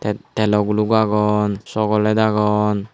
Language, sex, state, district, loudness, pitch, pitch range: Chakma, male, Tripura, Unakoti, -18 LUFS, 105 Hz, 105-110 Hz